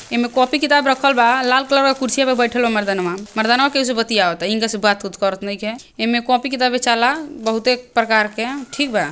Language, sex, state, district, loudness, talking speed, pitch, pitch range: Bhojpuri, female, Bihar, Gopalganj, -17 LUFS, 210 wpm, 240 Hz, 220-265 Hz